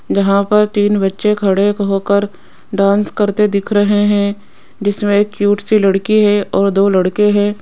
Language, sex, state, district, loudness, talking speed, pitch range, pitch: Hindi, female, Rajasthan, Jaipur, -14 LUFS, 165 wpm, 200-210 Hz, 205 Hz